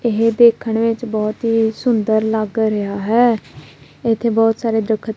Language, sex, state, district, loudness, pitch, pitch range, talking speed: Punjabi, female, Punjab, Kapurthala, -17 LUFS, 225 Hz, 215-230 Hz, 150 wpm